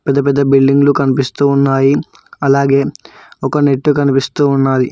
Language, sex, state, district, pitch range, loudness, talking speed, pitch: Telugu, male, Telangana, Hyderabad, 135-140 Hz, -13 LUFS, 120 wpm, 140 Hz